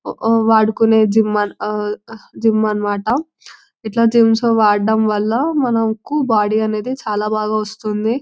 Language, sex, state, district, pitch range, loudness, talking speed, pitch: Telugu, female, Telangana, Nalgonda, 215-230 Hz, -16 LUFS, 100 wpm, 220 Hz